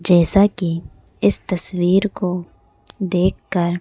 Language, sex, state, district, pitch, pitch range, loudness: Hindi, female, Madhya Pradesh, Bhopal, 180 Hz, 175-190 Hz, -18 LUFS